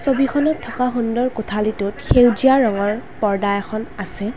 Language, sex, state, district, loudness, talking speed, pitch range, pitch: Assamese, female, Assam, Kamrup Metropolitan, -19 LUFS, 125 wpm, 210-250 Hz, 225 Hz